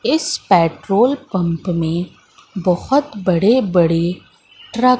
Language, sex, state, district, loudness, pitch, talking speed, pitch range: Hindi, female, Madhya Pradesh, Katni, -17 LUFS, 190 Hz, 110 wpm, 175-250 Hz